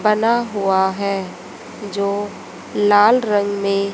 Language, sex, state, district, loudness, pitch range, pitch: Hindi, female, Haryana, Jhajjar, -18 LUFS, 195-210 Hz, 200 Hz